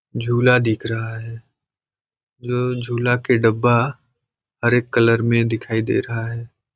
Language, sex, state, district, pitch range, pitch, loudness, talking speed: Hindi, male, Chhattisgarh, Balrampur, 115-125 Hz, 120 Hz, -19 LUFS, 140 wpm